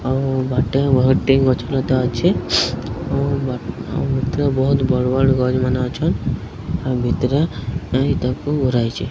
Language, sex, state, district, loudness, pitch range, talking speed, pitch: Odia, male, Odisha, Sambalpur, -19 LUFS, 125-135 Hz, 130 wpm, 130 Hz